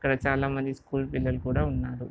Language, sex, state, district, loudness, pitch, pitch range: Telugu, male, Andhra Pradesh, Visakhapatnam, -29 LUFS, 135 Hz, 130-135 Hz